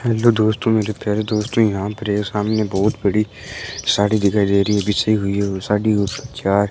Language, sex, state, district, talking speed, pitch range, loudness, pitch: Hindi, female, Rajasthan, Bikaner, 215 wpm, 100-110 Hz, -19 LUFS, 105 Hz